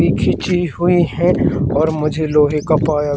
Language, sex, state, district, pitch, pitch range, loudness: Hindi, male, Madhya Pradesh, Katni, 155 Hz, 150-175 Hz, -16 LUFS